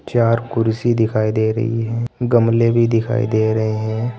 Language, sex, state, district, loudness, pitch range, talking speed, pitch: Hindi, male, Uttar Pradesh, Saharanpur, -17 LUFS, 110-120 Hz, 170 wpm, 115 Hz